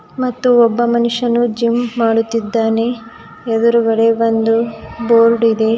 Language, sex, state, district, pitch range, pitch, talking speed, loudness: Kannada, female, Karnataka, Bidar, 225-235 Hz, 230 Hz, 95 wpm, -14 LUFS